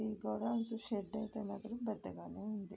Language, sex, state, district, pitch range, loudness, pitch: Telugu, female, Andhra Pradesh, Srikakulam, 205-220 Hz, -42 LUFS, 215 Hz